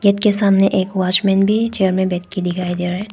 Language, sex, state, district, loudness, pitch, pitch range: Hindi, female, Arunachal Pradesh, Papum Pare, -16 LUFS, 195 Hz, 185-200 Hz